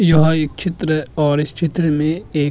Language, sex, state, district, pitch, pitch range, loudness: Hindi, male, Maharashtra, Chandrapur, 155 Hz, 150-165 Hz, -18 LUFS